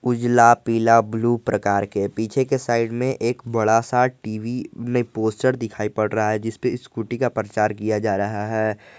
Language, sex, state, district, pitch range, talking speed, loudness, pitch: Hindi, male, Jharkhand, Garhwa, 110-120 Hz, 185 wpm, -21 LUFS, 115 Hz